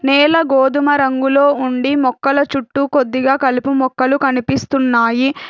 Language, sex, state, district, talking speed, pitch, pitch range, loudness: Telugu, female, Telangana, Hyderabad, 110 wpm, 270 Hz, 260-280 Hz, -14 LUFS